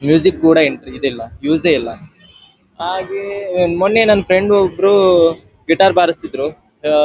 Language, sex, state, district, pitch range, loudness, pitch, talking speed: Kannada, male, Karnataka, Dharwad, 160-195 Hz, -14 LUFS, 180 Hz, 120 wpm